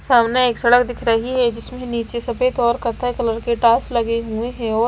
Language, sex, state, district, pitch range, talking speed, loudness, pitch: Hindi, female, Haryana, Rohtak, 230-245 Hz, 220 wpm, -18 LUFS, 235 Hz